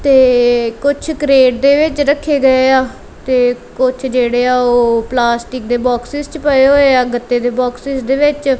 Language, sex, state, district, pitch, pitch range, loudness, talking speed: Punjabi, female, Punjab, Kapurthala, 255 Hz, 245-280 Hz, -13 LUFS, 175 wpm